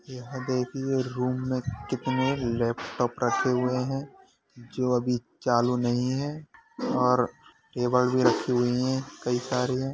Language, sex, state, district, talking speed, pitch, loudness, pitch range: Hindi, male, Uttar Pradesh, Hamirpur, 140 wpm, 125 Hz, -27 LUFS, 125-130 Hz